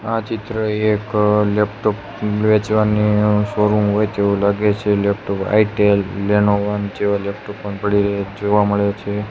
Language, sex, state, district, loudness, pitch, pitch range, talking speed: Gujarati, male, Gujarat, Gandhinagar, -18 LUFS, 105 Hz, 100-105 Hz, 135 wpm